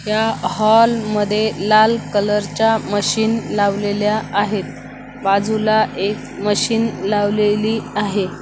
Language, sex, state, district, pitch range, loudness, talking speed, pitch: Marathi, female, Maharashtra, Washim, 205-220 Hz, -17 LUFS, 100 wpm, 210 Hz